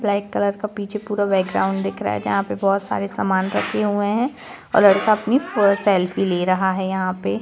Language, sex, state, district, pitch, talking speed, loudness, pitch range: Hindi, female, Jharkhand, Jamtara, 195 Hz, 210 wpm, -20 LUFS, 180-205 Hz